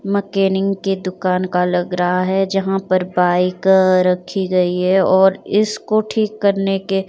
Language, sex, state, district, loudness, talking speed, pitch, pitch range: Hindi, female, Himachal Pradesh, Shimla, -17 LUFS, 150 wpm, 190 Hz, 180-195 Hz